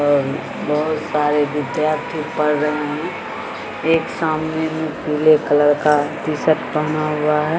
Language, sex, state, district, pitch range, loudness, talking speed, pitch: Maithili, female, Bihar, Samastipur, 150-155 Hz, -19 LUFS, 140 wpm, 150 Hz